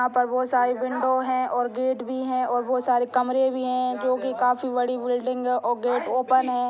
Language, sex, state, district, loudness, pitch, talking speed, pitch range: Hindi, female, Bihar, Gopalganj, -24 LUFS, 250 Hz, 235 wpm, 245-255 Hz